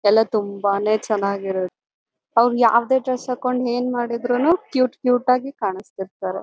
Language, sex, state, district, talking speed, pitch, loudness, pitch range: Kannada, female, Karnataka, Bellary, 120 wpm, 235 Hz, -20 LUFS, 200-250 Hz